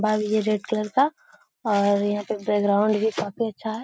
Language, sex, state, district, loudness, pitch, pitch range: Hindi, female, Bihar, Supaul, -23 LUFS, 215 Hz, 205-220 Hz